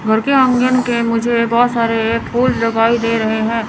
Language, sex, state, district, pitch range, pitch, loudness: Hindi, female, Chandigarh, Chandigarh, 225-240 Hz, 230 Hz, -15 LUFS